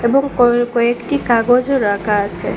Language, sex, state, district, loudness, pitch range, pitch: Bengali, female, Assam, Hailakandi, -15 LUFS, 230-255 Hz, 240 Hz